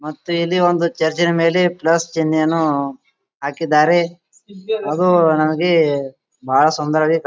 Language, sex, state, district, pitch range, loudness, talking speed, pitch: Kannada, male, Karnataka, Gulbarga, 155-175 Hz, -17 LUFS, 105 wpm, 165 Hz